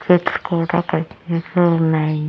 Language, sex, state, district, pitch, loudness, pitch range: Telugu, female, Andhra Pradesh, Annamaya, 170 Hz, -19 LUFS, 160-175 Hz